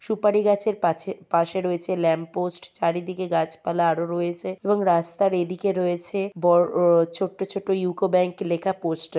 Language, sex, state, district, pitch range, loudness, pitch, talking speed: Bengali, female, West Bengal, Kolkata, 170-195 Hz, -23 LUFS, 180 Hz, 155 wpm